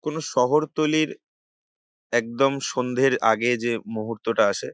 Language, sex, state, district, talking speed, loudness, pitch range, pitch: Bengali, male, West Bengal, North 24 Parganas, 100 wpm, -23 LUFS, 115-145 Hz, 125 Hz